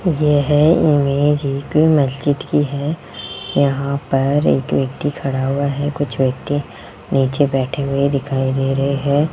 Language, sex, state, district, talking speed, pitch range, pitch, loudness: Hindi, male, Rajasthan, Jaipur, 140 wpm, 135-145 Hz, 140 Hz, -17 LUFS